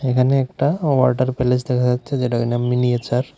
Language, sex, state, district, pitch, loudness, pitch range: Bengali, male, Tripura, West Tripura, 125 Hz, -19 LUFS, 125-130 Hz